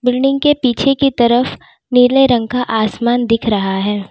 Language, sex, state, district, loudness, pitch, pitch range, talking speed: Hindi, female, Uttar Pradesh, Lalitpur, -14 LUFS, 245 Hz, 225-260 Hz, 175 wpm